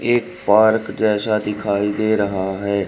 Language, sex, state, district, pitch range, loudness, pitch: Hindi, male, Haryana, Rohtak, 100-110 Hz, -18 LUFS, 105 Hz